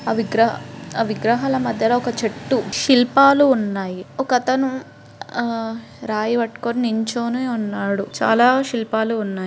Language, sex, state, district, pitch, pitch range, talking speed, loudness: Telugu, female, Andhra Pradesh, Guntur, 235 Hz, 220-250 Hz, 115 wpm, -19 LUFS